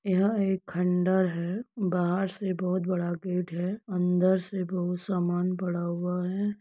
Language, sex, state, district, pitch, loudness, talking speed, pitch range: Hindi, female, Uttar Pradesh, Etah, 180 Hz, -28 LUFS, 155 wpm, 180-190 Hz